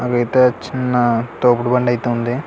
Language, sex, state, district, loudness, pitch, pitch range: Telugu, male, Andhra Pradesh, Krishna, -16 LUFS, 120 Hz, 120-125 Hz